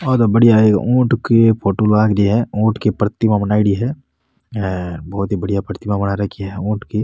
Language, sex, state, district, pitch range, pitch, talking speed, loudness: Rajasthani, male, Rajasthan, Nagaur, 100-115 Hz, 105 Hz, 215 wpm, -16 LUFS